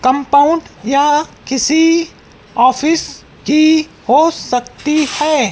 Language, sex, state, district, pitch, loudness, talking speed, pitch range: Hindi, female, Madhya Pradesh, Dhar, 295 Hz, -13 LUFS, 85 wpm, 265-315 Hz